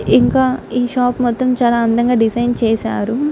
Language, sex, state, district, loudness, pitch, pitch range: Telugu, female, Andhra Pradesh, Guntur, -15 LUFS, 240 Hz, 230-250 Hz